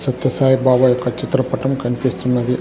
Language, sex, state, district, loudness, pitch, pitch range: Telugu, male, Andhra Pradesh, Sri Satya Sai, -17 LUFS, 130 Hz, 125-130 Hz